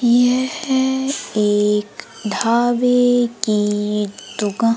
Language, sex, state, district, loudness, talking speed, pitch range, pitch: Hindi, female, Madhya Pradesh, Umaria, -18 LUFS, 65 wpm, 210-245 Hz, 230 Hz